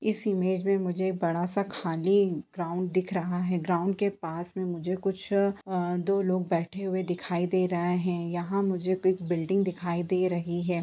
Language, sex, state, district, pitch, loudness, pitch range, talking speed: Hindi, female, Bihar, Purnia, 185 Hz, -29 LUFS, 175-195 Hz, 190 wpm